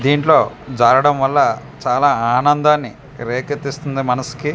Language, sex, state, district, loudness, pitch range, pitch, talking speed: Telugu, male, Andhra Pradesh, Manyam, -16 LUFS, 130-145 Hz, 140 Hz, 90 wpm